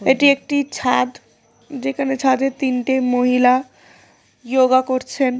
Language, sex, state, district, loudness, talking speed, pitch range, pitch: Bengali, female, West Bengal, Dakshin Dinajpur, -18 LUFS, 100 wpm, 255-270 Hz, 265 Hz